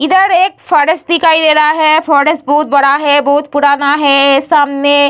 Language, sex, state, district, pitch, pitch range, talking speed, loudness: Hindi, female, Bihar, Vaishali, 295 Hz, 285-315 Hz, 190 wpm, -9 LUFS